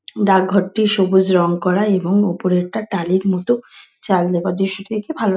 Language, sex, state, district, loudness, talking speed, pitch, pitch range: Bengali, female, West Bengal, Dakshin Dinajpur, -17 LUFS, 190 wpm, 190 Hz, 180-205 Hz